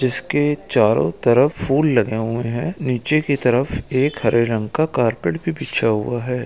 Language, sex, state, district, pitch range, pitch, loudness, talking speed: Hindi, male, Bihar, East Champaran, 115-140 Hz, 125 Hz, -19 LUFS, 175 wpm